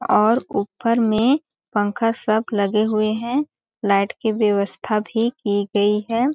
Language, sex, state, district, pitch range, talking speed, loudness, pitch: Hindi, female, Chhattisgarh, Balrampur, 205-230 Hz, 150 wpm, -20 LUFS, 215 Hz